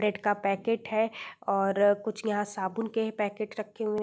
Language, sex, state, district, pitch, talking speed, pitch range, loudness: Hindi, female, Uttar Pradesh, Deoria, 210 Hz, 195 wpm, 205-220 Hz, -29 LUFS